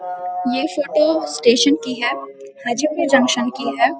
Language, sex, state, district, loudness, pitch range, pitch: Hindi, female, Bihar, Samastipur, -18 LUFS, 195-305 Hz, 245 Hz